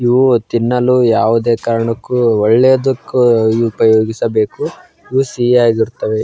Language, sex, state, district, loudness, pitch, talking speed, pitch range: Kannada, male, Karnataka, Bijapur, -13 LUFS, 115 Hz, 85 wpm, 115-125 Hz